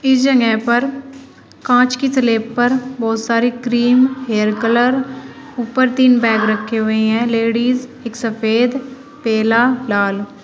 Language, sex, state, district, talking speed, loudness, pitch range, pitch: Hindi, female, Uttar Pradesh, Shamli, 130 wpm, -15 LUFS, 225-260 Hz, 240 Hz